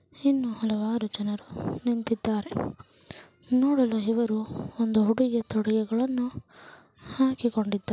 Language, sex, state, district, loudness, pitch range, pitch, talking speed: Kannada, female, Karnataka, Chamarajanagar, -27 LUFS, 215-245 Hz, 230 Hz, 75 wpm